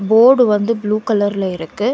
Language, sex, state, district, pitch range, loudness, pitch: Tamil, female, Karnataka, Bangalore, 205-230 Hz, -15 LUFS, 215 Hz